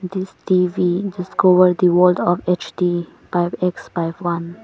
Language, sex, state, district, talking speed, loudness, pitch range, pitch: Hindi, female, Arunachal Pradesh, Papum Pare, 155 wpm, -18 LUFS, 175-185 Hz, 180 Hz